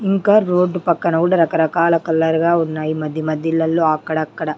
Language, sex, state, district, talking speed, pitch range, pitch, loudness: Telugu, female, Andhra Pradesh, Sri Satya Sai, 155 wpm, 155-175 Hz, 165 Hz, -17 LUFS